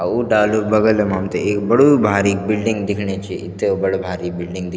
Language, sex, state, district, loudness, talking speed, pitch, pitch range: Garhwali, male, Uttarakhand, Tehri Garhwal, -17 LUFS, 240 wpm, 100 Hz, 95-105 Hz